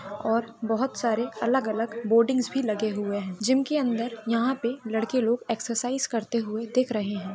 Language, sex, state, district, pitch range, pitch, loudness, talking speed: Hindi, female, Jharkhand, Jamtara, 220-250 Hz, 230 Hz, -26 LUFS, 195 wpm